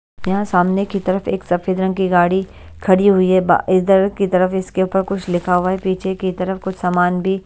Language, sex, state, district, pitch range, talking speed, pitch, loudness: Hindi, male, Delhi, New Delhi, 180-190 Hz, 215 wpm, 185 Hz, -17 LUFS